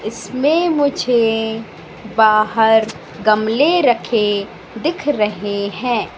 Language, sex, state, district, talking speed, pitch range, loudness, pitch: Hindi, female, Madhya Pradesh, Katni, 80 wpm, 215-250 Hz, -16 LUFS, 220 Hz